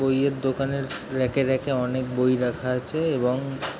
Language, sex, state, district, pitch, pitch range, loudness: Bengali, male, West Bengal, Jhargram, 130 Hz, 125-135 Hz, -25 LUFS